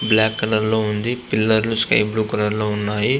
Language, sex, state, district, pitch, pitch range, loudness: Telugu, male, Andhra Pradesh, Visakhapatnam, 110 Hz, 105-110 Hz, -19 LUFS